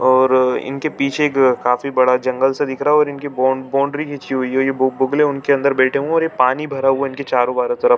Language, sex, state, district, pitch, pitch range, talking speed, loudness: Hindi, male, Chhattisgarh, Bilaspur, 135 Hz, 130-145 Hz, 250 wpm, -17 LUFS